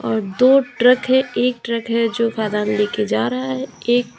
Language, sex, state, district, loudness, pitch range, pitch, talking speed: Hindi, female, Uttar Pradesh, Lalitpur, -18 LUFS, 210-245 Hz, 230 Hz, 215 wpm